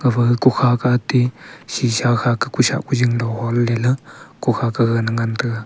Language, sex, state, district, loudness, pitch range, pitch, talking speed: Wancho, male, Arunachal Pradesh, Longding, -18 LUFS, 115-125 Hz, 120 Hz, 170 wpm